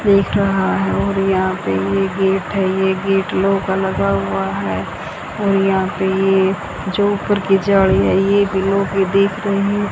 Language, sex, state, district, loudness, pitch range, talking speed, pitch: Hindi, female, Haryana, Jhajjar, -17 LUFS, 190-200 Hz, 195 wpm, 195 Hz